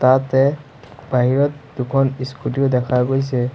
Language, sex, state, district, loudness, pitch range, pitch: Assamese, male, Assam, Sonitpur, -19 LUFS, 125-135 Hz, 135 Hz